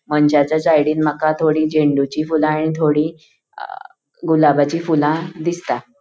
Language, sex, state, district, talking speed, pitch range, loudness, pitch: Konkani, female, Goa, North and South Goa, 110 wpm, 150-160 Hz, -17 LUFS, 155 Hz